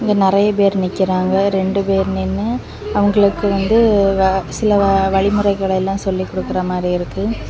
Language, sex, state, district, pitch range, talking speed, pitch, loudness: Tamil, female, Tamil Nadu, Kanyakumari, 190-200 Hz, 130 wpm, 195 Hz, -16 LUFS